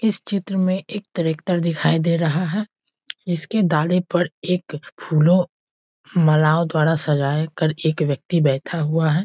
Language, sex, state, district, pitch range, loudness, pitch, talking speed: Hindi, male, Bihar, East Champaran, 155-180 Hz, -20 LUFS, 165 Hz, 150 wpm